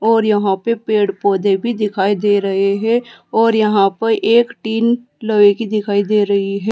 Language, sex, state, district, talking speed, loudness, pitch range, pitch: Hindi, female, Uttar Pradesh, Saharanpur, 190 wpm, -15 LUFS, 200-225 Hz, 210 Hz